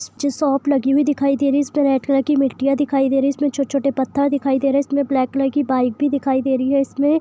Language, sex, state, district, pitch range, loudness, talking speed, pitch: Hindi, female, Jharkhand, Jamtara, 270-280 Hz, -18 LUFS, 265 wpm, 275 Hz